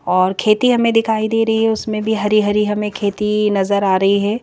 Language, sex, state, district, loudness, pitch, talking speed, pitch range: Hindi, female, Madhya Pradesh, Bhopal, -16 LUFS, 210 Hz, 230 wpm, 200-220 Hz